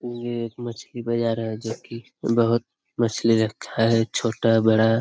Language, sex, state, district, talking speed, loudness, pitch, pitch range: Hindi, male, Bihar, Jamui, 155 wpm, -23 LUFS, 115 Hz, 115-120 Hz